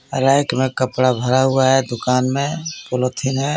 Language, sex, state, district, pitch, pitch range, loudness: Hindi, male, Jharkhand, Garhwa, 130 Hz, 125-135 Hz, -18 LUFS